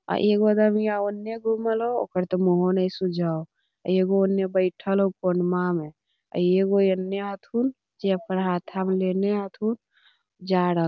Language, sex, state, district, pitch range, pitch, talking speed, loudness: Magahi, female, Bihar, Lakhisarai, 180-205 Hz, 190 Hz, 160 wpm, -24 LUFS